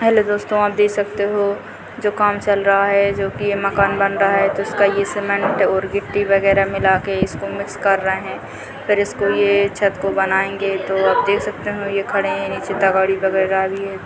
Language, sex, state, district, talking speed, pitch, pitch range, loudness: Hindi, female, Chhattisgarh, Raigarh, 215 wpm, 200 Hz, 195-205 Hz, -18 LUFS